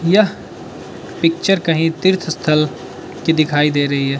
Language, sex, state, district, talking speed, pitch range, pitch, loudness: Hindi, male, Arunachal Pradesh, Lower Dibang Valley, 140 wpm, 150-175 Hz, 160 Hz, -16 LUFS